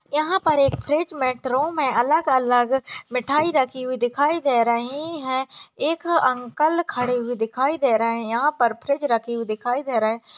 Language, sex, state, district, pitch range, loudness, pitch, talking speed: Hindi, female, Chhattisgarh, Jashpur, 240-300 Hz, -22 LUFS, 260 Hz, 185 wpm